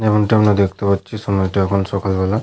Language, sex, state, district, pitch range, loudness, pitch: Bengali, male, West Bengal, Malda, 95-105 Hz, -17 LUFS, 100 Hz